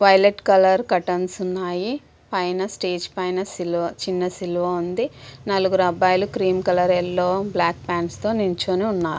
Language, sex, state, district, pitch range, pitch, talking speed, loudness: Telugu, female, Andhra Pradesh, Visakhapatnam, 180-190 Hz, 185 Hz, 135 wpm, -21 LUFS